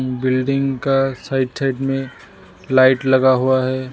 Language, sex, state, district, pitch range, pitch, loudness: Hindi, male, Assam, Sonitpur, 130-135 Hz, 130 Hz, -17 LUFS